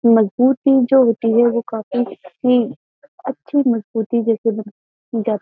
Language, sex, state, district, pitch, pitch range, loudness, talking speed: Hindi, female, Uttar Pradesh, Jyotiba Phule Nagar, 235 Hz, 225-260 Hz, -17 LUFS, 120 wpm